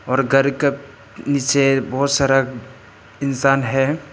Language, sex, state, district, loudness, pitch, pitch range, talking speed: Hindi, male, Arunachal Pradesh, Papum Pare, -18 LUFS, 135 Hz, 130-140 Hz, 115 wpm